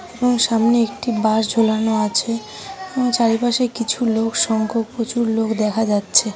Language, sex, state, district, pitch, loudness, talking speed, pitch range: Bengali, female, West Bengal, Jhargram, 225 Hz, -18 LUFS, 150 wpm, 220-235 Hz